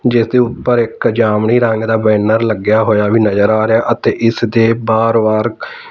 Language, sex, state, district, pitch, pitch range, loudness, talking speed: Punjabi, male, Punjab, Fazilka, 115 Hz, 110-120 Hz, -13 LUFS, 190 wpm